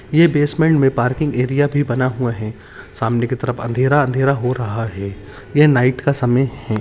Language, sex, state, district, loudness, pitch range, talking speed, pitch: Hindi, male, Uttarakhand, Uttarkashi, -17 LUFS, 115-145 Hz, 195 wpm, 125 Hz